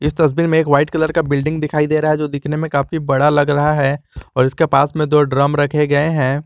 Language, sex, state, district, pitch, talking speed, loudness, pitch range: Hindi, male, Jharkhand, Garhwa, 150 Hz, 260 wpm, -16 LUFS, 140-155 Hz